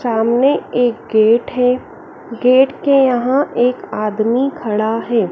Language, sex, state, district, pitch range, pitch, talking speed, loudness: Hindi, female, Madhya Pradesh, Dhar, 225-260 Hz, 245 Hz, 125 wpm, -15 LUFS